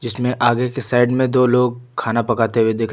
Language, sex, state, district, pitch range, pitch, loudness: Hindi, male, Uttar Pradesh, Lucknow, 115-125 Hz, 120 Hz, -17 LUFS